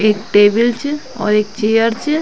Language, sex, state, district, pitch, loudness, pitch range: Garhwali, female, Uttarakhand, Tehri Garhwal, 225 Hz, -15 LUFS, 210-255 Hz